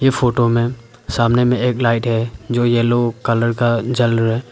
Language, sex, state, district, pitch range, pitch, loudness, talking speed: Hindi, male, Arunachal Pradesh, Papum Pare, 115-120 Hz, 120 Hz, -17 LUFS, 185 wpm